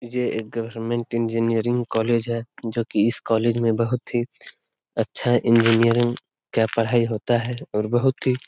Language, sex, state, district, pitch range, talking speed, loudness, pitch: Hindi, male, Bihar, Lakhisarai, 115-120 Hz, 165 wpm, -22 LUFS, 115 Hz